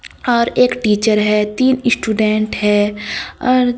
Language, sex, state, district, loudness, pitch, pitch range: Hindi, female, Bihar, Katihar, -15 LUFS, 220 Hz, 210-245 Hz